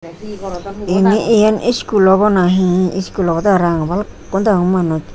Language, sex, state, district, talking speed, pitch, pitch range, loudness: Chakma, female, Tripura, Unakoti, 130 wpm, 190 Hz, 180-205 Hz, -14 LUFS